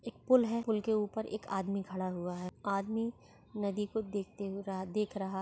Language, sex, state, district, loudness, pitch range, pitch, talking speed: Hindi, female, Maharashtra, Solapur, -35 LUFS, 195-220 Hz, 200 Hz, 210 wpm